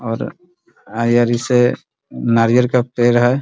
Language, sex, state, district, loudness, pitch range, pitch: Hindi, male, Bihar, Muzaffarpur, -16 LUFS, 115-125 Hz, 120 Hz